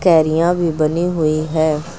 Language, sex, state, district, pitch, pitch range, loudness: Hindi, female, Uttar Pradesh, Lucknow, 160 Hz, 155-170 Hz, -16 LUFS